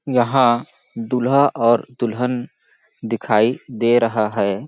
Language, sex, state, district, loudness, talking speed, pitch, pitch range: Hindi, male, Chhattisgarh, Balrampur, -18 LUFS, 105 wpm, 120 Hz, 115-125 Hz